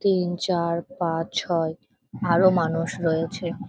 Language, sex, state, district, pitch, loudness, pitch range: Bengali, female, West Bengal, Kolkata, 170 Hz, -24 LUFS, 165-185 Hz